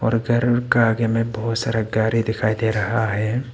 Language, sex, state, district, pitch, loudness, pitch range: Hindi, male, Arunachal Pradesh, Papum Pare, 115 Hz, -20 LUFS, 110-115 Hz